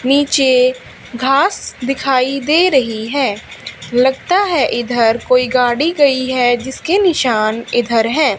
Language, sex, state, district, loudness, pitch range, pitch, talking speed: Hindi, female, Haryana, Charkhi Dadri, -14 LUFS, 245-285 Hz, 260 Hz, 120 wpm